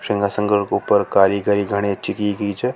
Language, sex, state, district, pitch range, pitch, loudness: Rajasthani, male, Rajasthan, Nagaur, 100-105 Hz, 100 Hz, -19 LUFS